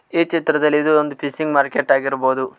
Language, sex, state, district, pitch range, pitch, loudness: Kannada, male, Karnataka, Koppal, 135-155 Hz, 145 Hz, -18 LUFS